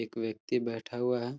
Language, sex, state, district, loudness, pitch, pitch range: Hindi, male, Bihar, Darbhanga, -33 LUFS, 120 Hz, 115-125 Hz